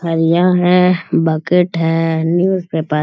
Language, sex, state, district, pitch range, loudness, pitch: Hindi, male, Bihar, Bhagalpur, 160-180 Hz, -14 LUFS, 170 Hz